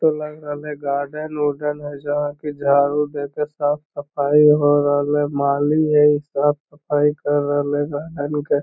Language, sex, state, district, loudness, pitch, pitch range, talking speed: Magahi, male, Bihar, Lakhisarai, -19 LUFS, 145 Hz, 145-150 Hz, 160 wpm